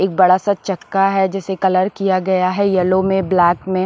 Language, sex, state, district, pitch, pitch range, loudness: Hindi, female, Maharashtra, Washim, 190 Hz, 185-195 Hz, -16 LUFS